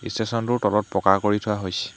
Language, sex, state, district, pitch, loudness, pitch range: Assamese, male, Assam, Hailakandi, 105 Hz, -22 LUFS, 100-115 Hz